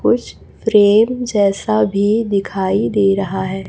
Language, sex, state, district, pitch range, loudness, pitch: Hindi, female, Chhattisgarh, Raipur, 190-210 Hz, -15 LUFS, 200 Hz